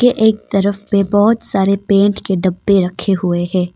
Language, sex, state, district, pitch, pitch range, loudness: Hindi, female, Arunachal Pradesh, Papum Pare, 195 Hz, 185-205 Hz, -15 LUFS